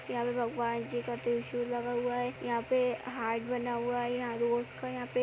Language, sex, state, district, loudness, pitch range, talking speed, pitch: Hindi, female, Uttar Pradesh, Jyotiba Phule Nagar, -33 LUFS, 235-245 Hz, 240 wpm, 240 Hz